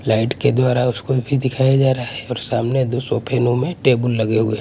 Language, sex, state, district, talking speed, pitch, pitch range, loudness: Hindi, male, Punjab, Kapurthala, 245 wpm, 125 Hz, 120-130 Hz, -18 LUFS